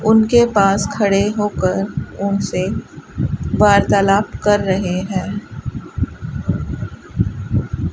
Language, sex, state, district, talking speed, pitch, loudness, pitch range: Hindi, female, Rajasthan, Bikaner, 70 wpm, 200 Hz, -18 LUFS, 190-210 Hz